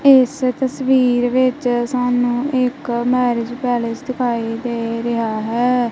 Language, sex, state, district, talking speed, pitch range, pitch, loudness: Punjabi, female, Punjab, Kapurthala, 110 wpm, 235-255 Hz, 245 Hz, -18 LUFS